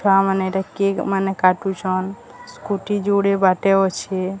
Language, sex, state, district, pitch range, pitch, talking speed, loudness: Odia, female, Odisha, Sambalpur, 190-200 Hz, 195 Hz, 135 wpm, -19 LUFS